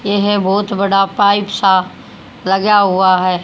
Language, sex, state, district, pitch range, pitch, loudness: Hindi, female, Haryana, Rohtak, 190-205 Hz, 200 Hz, -13 LUFS